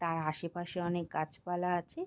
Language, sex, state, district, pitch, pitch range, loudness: Bengali, female, West Bengal, Jalpaiguri, 175 Hz, 165-180 Hz, -36 LUFS